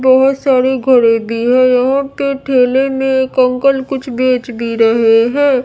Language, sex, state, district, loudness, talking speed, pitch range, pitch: Hindi, female, Bihar, Katihar, -12 LUFS, 150 wpm, 245-270 Hz, 260 Hz